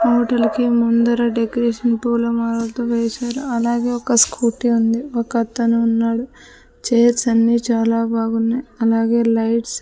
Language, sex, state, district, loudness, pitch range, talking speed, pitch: Telugu, female, Andhra Pradesh, Sri Satya Sai, -18 LUFS, 230-240 Hz, 120 wpm, 235 Hz